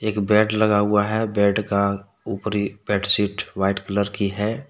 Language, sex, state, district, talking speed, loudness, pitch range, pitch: Hindi, male, Jharkhand, Deoghar, 165 wpm, -21 LUFS, 100-105 Hz, 105 Hz